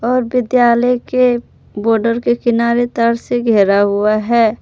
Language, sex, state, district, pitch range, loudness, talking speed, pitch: Hindi, female, Jharkhand, Palamu, 225-245 Hz, -14 LUFS, 140 wpm, 235 Hz